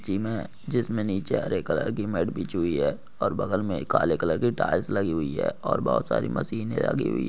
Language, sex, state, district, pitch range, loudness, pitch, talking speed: Hindi, male, West Bengal, Jhargram, 95-110 Hz, -27 LUFS, 105 Hz, 230 wpm